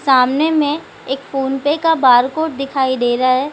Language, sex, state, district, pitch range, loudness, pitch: Hindi, female, Bihar, Gaya, 260-300 Hz, -16 LUFS, 270 Hz